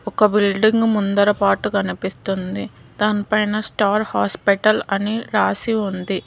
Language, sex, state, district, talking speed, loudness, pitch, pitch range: Telugu, female, Telangana, Hyderabad, 125 wpm, -19 LUFS, 210 Hz, 195-215 Hz